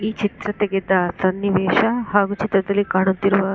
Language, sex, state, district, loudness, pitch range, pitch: Kannada, female, Karnataka, Dakshina Kannada, -19 LUFS, 190-205 Hz, 195 Hz